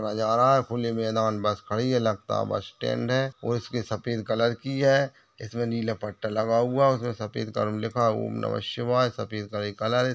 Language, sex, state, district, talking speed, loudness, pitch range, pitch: Hindi, male, Chhattisgarh, Raigarh, 225 wpm, -26 LUFS, 110-125 Hz, 115 Hz